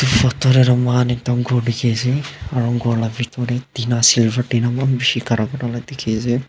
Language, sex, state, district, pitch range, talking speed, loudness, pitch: Nagamese, male, Nagaland, Dimapur, 120-125 Hz, 155 wpm, -18 LUFS, 120 Hz